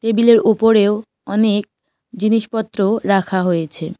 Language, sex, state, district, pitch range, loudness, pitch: Bengali, female, West Bengal, Cooch Behar, 195-220 Hz, -16 LUFS, 210 Hz